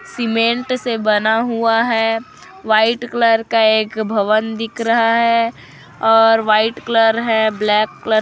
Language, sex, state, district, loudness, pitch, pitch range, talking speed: Hindi, female, Chhattisgarh, Kabirdham, -15 LUFS, 225 Hz, 220-230 Hz, 145 wpm